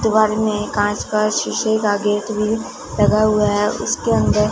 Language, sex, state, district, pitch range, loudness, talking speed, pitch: Hindi, female, Punjab, Fazilka, 205-215 Hz, -18 LUFS, 175 wpm, 215 Hz